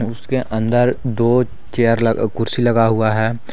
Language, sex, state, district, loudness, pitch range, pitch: Hindi, male, Jharkhand, Garhwa, -17 LUFS, 110-120 Hz, 115 Hz